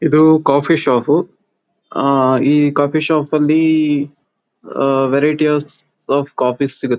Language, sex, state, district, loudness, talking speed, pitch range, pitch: Kannada, male, Karnataka, Mysore, -14 LUFS, 105 wpm, 140-155 Hz, 145 Hz